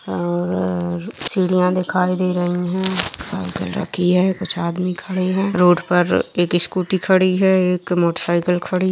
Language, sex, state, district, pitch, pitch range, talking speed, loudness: Hindi, female, Bihar, Gaya, 180 Hz, 175-185 Hz, 175 wpm, -19 LUFS